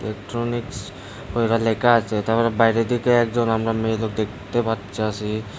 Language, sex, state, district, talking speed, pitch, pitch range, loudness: Bengali, male, Tripura, Unakoti, 140 wpm, 115 Hz, 110-120 Hz, -21 LUFS